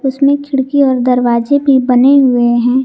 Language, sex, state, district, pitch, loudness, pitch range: Hindi, female, Jharkhand, Garhwa, 265 Hz, -11 LUFS, 250-275 Hz